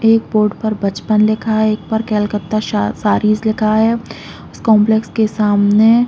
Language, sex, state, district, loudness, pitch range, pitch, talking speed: Hindi, female, Chhattisgarh, Raigarh, -15 LUFS, 210-220 Hz, 215 Hz, 175 wpm